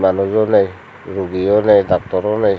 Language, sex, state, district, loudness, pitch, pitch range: Chakma, male, Tripura, Unakoti, -15 LUFS, 95 Hz, 95-105 Hz